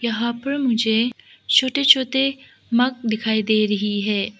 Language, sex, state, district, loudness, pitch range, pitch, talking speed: Hindi, female, Arunachal Pradesh, Lower Dibang Valley, -19 LUFS, 215-260 Hz, 235 Hz, 135 wpm